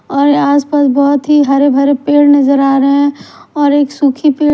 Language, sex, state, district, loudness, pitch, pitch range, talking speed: Hindi, female, Himachal Pradesh, Shimla, -10 LUFS, 285 Hz, 275-290 Hz, 200 wpm